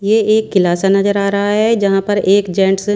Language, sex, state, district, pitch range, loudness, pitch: Hindi, female, Bihar, West Champaran, 195-205 Hz, -13 LUFS, 200 Hz